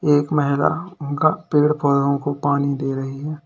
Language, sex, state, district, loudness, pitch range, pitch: Hindi, male, Uttar Pradesh, Lalitpur, -20 LUFS, 140-150 Hz, 145 Hz